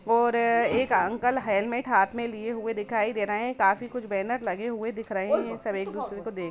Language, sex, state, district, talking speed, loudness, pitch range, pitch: Hindi, female, Jharkhand, Jamtara, 260 wpm, -27 LUFS, 205-235 Hz, 225 Hz